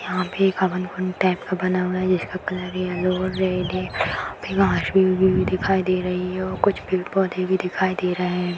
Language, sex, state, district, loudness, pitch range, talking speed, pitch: Hindi, female, Bihar, Madhepura, -22 LUFS, 180-185 Hz, 260 wpm, 185 Hz